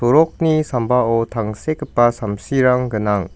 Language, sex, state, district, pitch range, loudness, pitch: Garo, male, Meghalaya, West Garo Hills, 110-145 Hz, -18 LUFS, 120 Hz